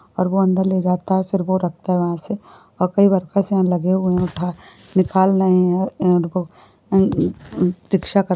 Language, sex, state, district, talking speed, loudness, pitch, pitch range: Hindi, female, Jharkhand, Jamtara, 170 wpm, -19 LUFS, 185 Hz, 180-190 Hz